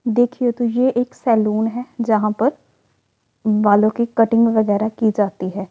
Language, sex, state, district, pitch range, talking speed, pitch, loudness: Marwari, female, Rajasthan, Churu, 205-235 Hz, 155 wpm, 220 Hz, -18 LUFS